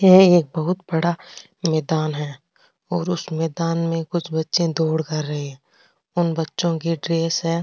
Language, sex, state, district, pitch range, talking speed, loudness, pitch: Rajasthani, female, Rajasthan, Nagaur, 160-175 Hz, 175 wpm, -21 LUFS, 165 Hz